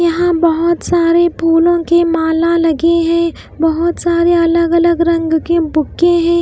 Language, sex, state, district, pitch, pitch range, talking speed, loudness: Hindi, female, Bihar, West Champaran, 335 Hz, 330-340 Hz, 150 wpm, -13 LUFS